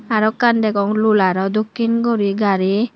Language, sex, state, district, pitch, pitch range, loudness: Chakma, female, Tripura, Unakoti, 215 Hz, 200-230 Hz, -17 LUFS